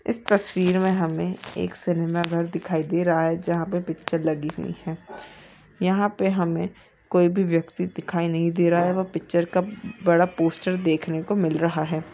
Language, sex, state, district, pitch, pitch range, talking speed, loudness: Hindi, female, Chhattisgarh, Raigarh, 170 Hz, 165-185 Hz, 190 wpm, -24 LUFS